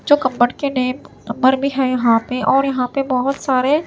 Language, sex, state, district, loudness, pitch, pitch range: Hindi, female, Chhattisgarh, Raipur, -17 LUFS, 260 Hz, 250-275 Hz